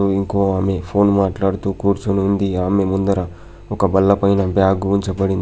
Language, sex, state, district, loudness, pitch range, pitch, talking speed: Telugu, male, Telangana, Adilabad, -17 LUFS, 95-100 Hz, 95 Hz, 135 wpm